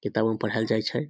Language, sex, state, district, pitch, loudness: Maithili, male, Bihar, Samastipur, 110 Hz, -26 LUFS